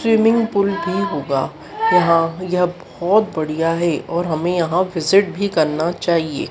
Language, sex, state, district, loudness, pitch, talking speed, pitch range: Hindi, female, Madhya Pradesh, Dhar, -18 LUFS, 175 Hz, 145 wpm, 165-200 Hz